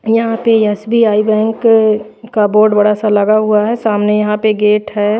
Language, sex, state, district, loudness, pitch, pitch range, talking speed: Hindi, female, Chhattisgarh, Raipur, -12 LUFS, 215 Hz, 210-220 Hz, 185 wpm